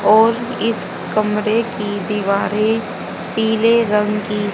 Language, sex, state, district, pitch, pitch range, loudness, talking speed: Hindi, female, Haryana, Charkhi Dadri, 215 Hz, 210-225 Hz, -17 LUFS, 105 wpm